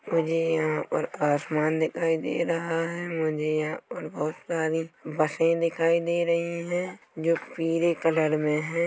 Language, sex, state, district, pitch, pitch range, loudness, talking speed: Hindi, male, Chhattisgarh, Korba, 165 Hz, 155-170 Hz, -27 LUFS, 155 wpm